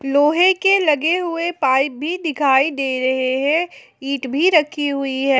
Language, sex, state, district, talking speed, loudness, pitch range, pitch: Hindi, female, Jharkhand, Ranchi, 165 wpm, -17 LUFS, 270-330 Hz, 290 Hz